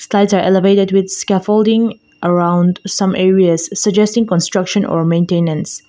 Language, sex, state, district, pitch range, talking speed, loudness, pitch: English, female, Mizoram, Aizawl, 175-205 Hz, 120 wpm, -14 LUFS, 190 Hz